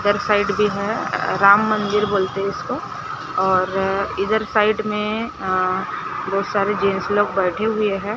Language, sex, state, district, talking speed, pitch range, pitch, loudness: Hindi, female, Maharashtra, Gondia, 155 wpm, 195-210 Hz, 205 Hz, -20 LUFS